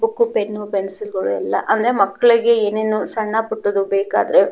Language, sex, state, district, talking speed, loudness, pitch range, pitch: Kannada, female, Karnataka, Mysore, 160 wpm, -17 LUFS, 205-235 Hz, 215 Hz